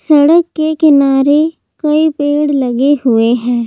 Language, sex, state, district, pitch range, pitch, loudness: Hindi, female, Delhi, New Delhi, 265-310 Hz, 290 Hz, -11 LUFS